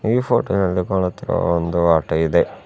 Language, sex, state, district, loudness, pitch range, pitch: Kannada, male, Karnataka, Bidar, -19 LUFS, 85-95 Hz, 90 Hz